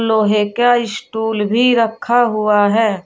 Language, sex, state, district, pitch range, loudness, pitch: Hindi, female, Uttar Pradesh, Shamli, 210-235 Hz, -15 LUFS, 220 Hz